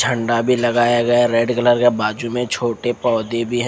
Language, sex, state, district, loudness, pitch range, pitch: Hindi, male, Odisha, Khordha, -17 LUFS, 115-120 Hz, 120 Hz